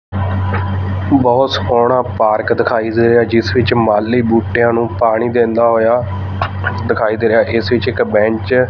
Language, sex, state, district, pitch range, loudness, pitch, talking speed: Punjabi, male, Punjab, Fazilka, 100-120 Hz, -14 LUFS, 115 Hz, 150 wpm